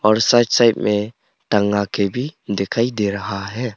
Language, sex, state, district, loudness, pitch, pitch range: Hindi, male, Arunachal Pradesh, Papum Pare, -18 LUFS, 105 Hz, 100-120 Hz